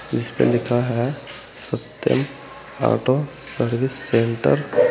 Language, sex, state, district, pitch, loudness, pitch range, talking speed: Hindi, male, Uttar Pradesh, Saharanpur, 130 Hz, -21 LUFS, 120-135 Hz, 95 wpm